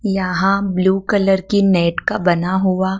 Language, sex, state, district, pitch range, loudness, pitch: Hindi, female, Madhya Pradesh, Dhar, 185-195 Hz, -16 LUFS, 190 Hz